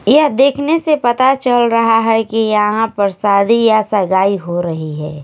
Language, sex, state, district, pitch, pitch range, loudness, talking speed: Hindi, female, Punjab, Kapurthala, 225 Hz, 200-245 Hz, -13 LUFS, 185 wpm